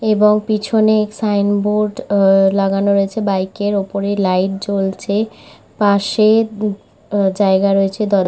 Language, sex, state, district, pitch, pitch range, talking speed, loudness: Bengali, female, West Bengal, Malda, 200 Hz, 195-210 Hz, 125 wpm, -16 LUFS